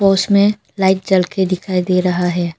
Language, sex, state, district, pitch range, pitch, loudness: Hindi, female, Arunachal Pradesh, Papum Pare, 180-195 Hz, 190 Hz, -16 LUFS